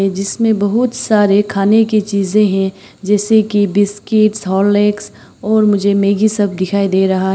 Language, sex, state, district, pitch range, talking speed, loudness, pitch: Hindi, female, Arunachal Pradesh, Papum Pare, 195-215 Hz, 145 wpm, -13 LUFS, 205 Hz